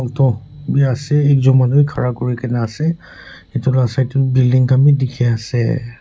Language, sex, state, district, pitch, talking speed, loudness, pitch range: Nagamese, male, Nagaland, Kohima, 130 Hz, 190 wpm, -15 LUFS, 125-140 Hz